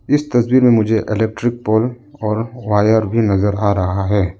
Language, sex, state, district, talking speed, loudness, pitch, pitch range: Hindi, male, Arunachal Pradesh, Lower Dibang Valley, 175 wpm, -16 LUFS, 110 Hz, 105-120 Hz